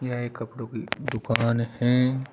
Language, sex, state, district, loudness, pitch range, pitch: Hindi, male, Uttar Pradesh, Shamli, -26 LUFS, 115-130 Hz, 120 Hz